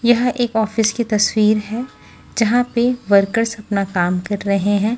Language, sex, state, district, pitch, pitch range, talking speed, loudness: Hindi, female, Haryana, Jhajjar, 215 Hz, 205-235 Hz, 170 wpm, -18 LUFS